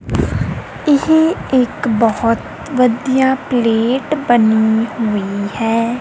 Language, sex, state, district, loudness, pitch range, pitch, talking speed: Punjabi, female, Punjab, Kapurthala, -15 LUFS, 225-265 Hz, 240 Hz, 80 wpm